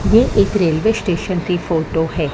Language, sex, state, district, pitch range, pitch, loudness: Hindi, female, Maharashtra, Mumbai Suburban, 160-200 Hz, 175 Hz, -17 LUFS